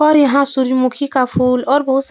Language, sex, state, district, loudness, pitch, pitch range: Hindi, female, Uttar Pradesh, Etah, -15 LUFS, 270 Hz, 255-280 Hz